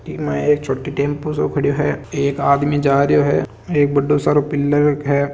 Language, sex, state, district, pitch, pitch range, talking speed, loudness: Marwari, male, Rajasthan, Nagaur, 145 Hz, 140-145 Hz, 200 wpm, -17 LUFS